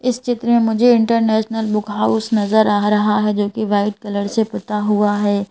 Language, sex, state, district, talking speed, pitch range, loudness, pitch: Hindi, female, Madhya Pradesh, Bhopal, 205 wpm, 205-225 Hz, -17 LUFS, 210 Hz